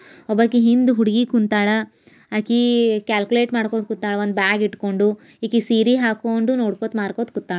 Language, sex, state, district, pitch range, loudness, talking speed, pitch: Kannada, female, Karnataka, Bijapur, 210-235 Hz, -19 LUFS, 135 wpm, 225 Hz